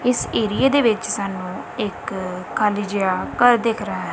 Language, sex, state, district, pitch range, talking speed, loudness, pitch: Punjabi, female, Punjab, Kapurthala, 190-240 Hz, 175 wpm, -20 LUFS, 210 Hz